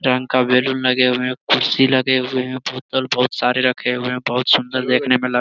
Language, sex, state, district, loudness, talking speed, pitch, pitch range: Hindi, male, Bihar, Jamui, -17 LUFS, 255 wpm, 125 Hz, 125-130 Hz